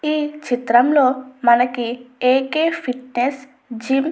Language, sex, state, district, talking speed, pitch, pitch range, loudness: Telugu, female, Andhra Pradesh, Anantapur, 100 wpm, 260 Hz, 245-280 Hz, -18 LUFS